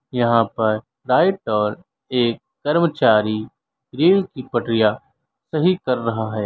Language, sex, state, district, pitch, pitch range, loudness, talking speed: Hindi, male, Uttar Pradesh, Lalitpur, 120 Hz, 110-150 Hz, -19 LUFS, 120 wpm